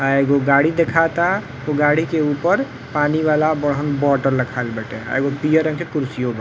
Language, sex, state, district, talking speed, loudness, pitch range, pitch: Bhojpuri, male, Uttar Pradesh, Varanasi, 195 wpm, -18 LUFS, 135-155 Hz, 145 Hz